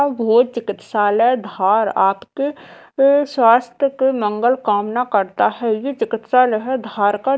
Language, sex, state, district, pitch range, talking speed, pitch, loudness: Hindi, female, Madhya Pradesh, Dhar, 210-265 Hz, 130 wpm, 235 Hz, -17 LUFS